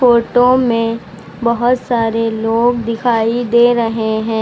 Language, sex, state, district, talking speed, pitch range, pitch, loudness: Hindi, female, Uttar Pradesh, Lucknow, 120 wpm, 225-240 Hz, 230 Hz, -14 LUFS